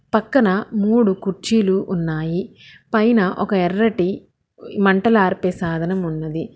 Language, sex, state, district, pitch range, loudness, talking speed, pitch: Telugu, female, Telangana, Hyderabad, 180-220 Hz, -19 LUFS, 90 wpm, 190 Hz